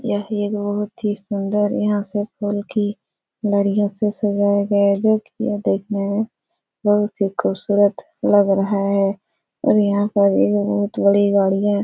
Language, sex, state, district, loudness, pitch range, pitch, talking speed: Hindi, female, Uttar Pradesh, Etah, -19 LUFS, 200-210 Hz, 205 Hz, 170 wpm